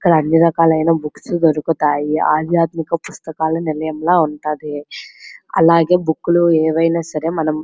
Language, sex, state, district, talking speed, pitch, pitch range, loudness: Telugu, female, Andhra Pradesh, Srikakulam, 125 wpm, 160 Hz, 155-165 Hz, -16 LUFS